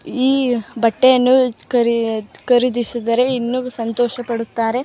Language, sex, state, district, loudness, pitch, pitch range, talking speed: Kannada, female, Karnataka, Mysore, -17 LUFS, 240 Hz, 230-255 Hz, 85 wpm